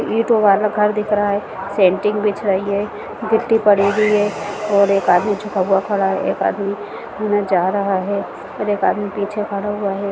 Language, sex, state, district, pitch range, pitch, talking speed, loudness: Hindi, female, Bihar, Lakhisarai, 200-210 Hz, 205 Hz, 195 wpm, -18 LUFS